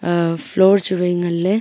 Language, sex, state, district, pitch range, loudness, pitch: Wancho, female, Arunachal Pradesh, Longding, 170-190 Hz, -17 LUFS, 180 Hz